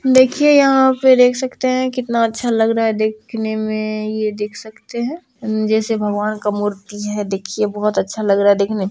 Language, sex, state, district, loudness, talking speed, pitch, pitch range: Maithili, female, Bihar, Saharsa, -17 LUFS, 210 wpm, 220 Hz, 210-250 Hz